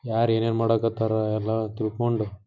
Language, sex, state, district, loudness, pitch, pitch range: Kannada, male, Karnataka, Dharwad, -25 LUFS, 110 Hz, 110-115 Hz